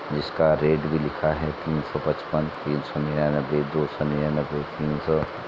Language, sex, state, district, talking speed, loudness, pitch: Hindi, male, Uttar Pradesh, Etah, 185 wpm, -25 LUFS, 75 Hz